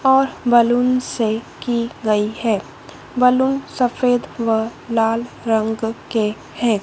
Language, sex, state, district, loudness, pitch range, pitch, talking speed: Hindi, female, Madhya Pradesh, Dhar, -19 LUFS, 225-250 Hz, 235 Hz, 115 wpm